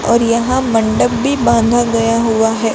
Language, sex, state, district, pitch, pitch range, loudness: Hindi, female, Gujarat, Gandhinagar, 230 Hz, 225-240 Hz, -13 LUFS